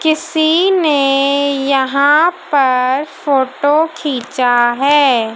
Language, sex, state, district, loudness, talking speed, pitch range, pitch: Hindi, female, Madhya Pradesh, Dhar, -13 LUFS, 80 wpm, 265-310 Hz, 280 Hz